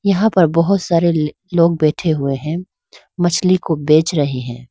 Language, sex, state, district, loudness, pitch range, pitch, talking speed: Hindi, female, Arunachal Pradesh, Lower Dibang Valley, -16 LUFS, 150-180 Hz, 170 Hz, 165 wpm